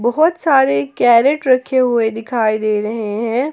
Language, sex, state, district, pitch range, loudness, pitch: Hindi, female, Jharkhand, Ranchi, 220-260 Hz, -15 LUFS, 240 Hz